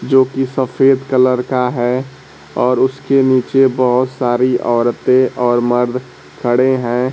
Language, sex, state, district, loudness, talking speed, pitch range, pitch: Hindi, male, Bihar, Kaimur, -14 LUFS, 135 wpm, 125-130 Hz, 130 Hz